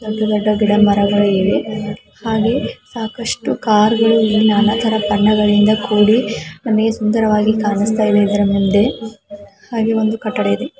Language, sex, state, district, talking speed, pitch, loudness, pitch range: Kannada, female, Karnataka, Belgaum, 120 wpm, 215 Hz, -15 LUFS, 205-220 Hz